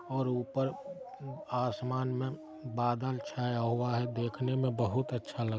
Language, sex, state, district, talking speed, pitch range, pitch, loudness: Hindi, male, Bihar, Araria, 140 wpm, 120-135 Hz, 125 Hz, -34 LUFS